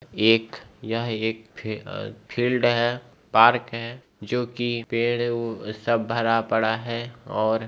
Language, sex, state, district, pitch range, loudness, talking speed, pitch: Hindi, male, Bihar, Begusarai, 110-120 Hz, -24 LUFS, 150 wpm, 115 Hz